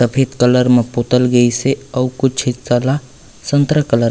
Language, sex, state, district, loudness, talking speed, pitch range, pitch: Chhattisgarhi, male, Chhattisgarh, Raigarh, -15 LUFS, 190 wpm, 120-135 Hz, 125 Hz